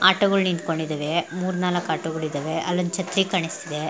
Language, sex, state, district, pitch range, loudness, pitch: Kannada, female, Karnataka, Belgaum, 160-185 Hz, -24 LUFS, 175 Hz